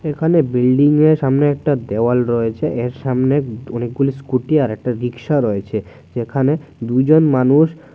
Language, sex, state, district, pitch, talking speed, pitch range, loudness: Bengali, male, Tripura, West Tripura, 130 Hz, 130 wpm, 120-145 Hz, -17 LUFS